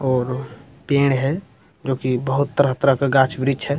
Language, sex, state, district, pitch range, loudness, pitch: Hindi, male, Bihar, Jamui, 130-140 Hz, -20 LUFS, 135 Hz